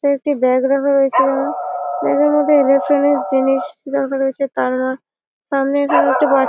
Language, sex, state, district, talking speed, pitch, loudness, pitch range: Bengali, female, West Bengal, Malda, 155 wpm, 270 Hz, -16 LUFS, 255-280 Hz